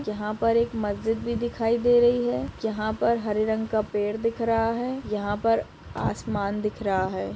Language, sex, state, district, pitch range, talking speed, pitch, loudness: Hindi, female, Maharashtra, Dhule, 210-230 Hz, 195 wpm, 220 Hz, -25 LUFS